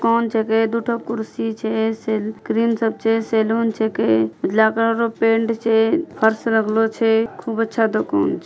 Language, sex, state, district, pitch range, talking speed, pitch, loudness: Angika, female, Bihar, Bhagalpur, 220-230 Hz, 135 wpm, 225 Hz, -19 LUFS